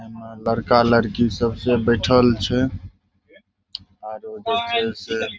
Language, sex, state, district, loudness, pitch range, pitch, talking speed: Maithili, male, Bihar, Saharsa, -20 LUFS, 110-125 Hz, 115 Hz, 120 wpm